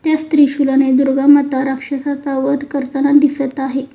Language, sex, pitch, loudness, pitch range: Marathi, female, 275 Hz, -14 LUFS, 270-285 Hz